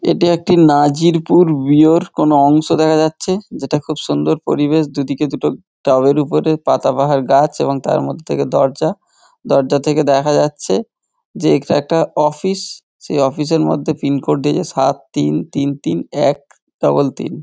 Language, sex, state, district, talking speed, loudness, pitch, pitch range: Bengali, male, West Bengal, Dakshin Dinajpur, 155 wpm, -15 LUFS, 150 Hz, 140-160 Hz